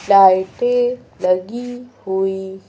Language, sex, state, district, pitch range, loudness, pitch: Hindi, female, Madhya Pradesh, Bhopal, 190-245 Hz, -17 LUFS, 195 Hz